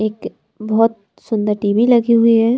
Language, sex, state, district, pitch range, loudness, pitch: Hindi, female, Bihar, Patna, 215-230 Hz, -15 LUFS, 225 Hz